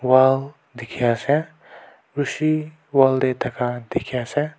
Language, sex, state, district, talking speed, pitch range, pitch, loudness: Nagamese, male, Nagaland, Kohima, 120 wpm, 125-150 Hz, 135 Hz, -21 LUFS